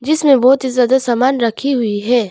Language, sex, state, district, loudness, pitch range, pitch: Hindi, female, Arunachal Pradesh, Longding, -14 LUFS, 240-270 Hz, 255 Hz